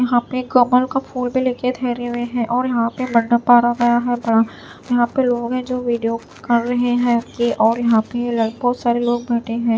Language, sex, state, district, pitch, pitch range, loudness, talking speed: Hindi, female, Chhattisgarh, Raipur, 240 Hz, 235-250 Hz, -18 LUFS, 200 wpm